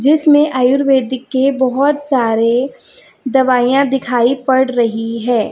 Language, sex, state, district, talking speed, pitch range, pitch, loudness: Hindi, female, Chhattisgarh, Raipur, 110 wpm, 245-275 Hz, 260 Hz, -14 LUFS